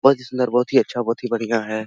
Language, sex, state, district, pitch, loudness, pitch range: Hindi, male, Bihar, Araria, 120 Hz, -20 LUFS, 115-125 Hz